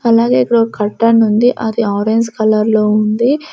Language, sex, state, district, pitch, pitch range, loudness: Telugu, female, Andhra Pradesh, Sri Satya Sai, 225 Hz, 215-235 Hz, -13 LUFS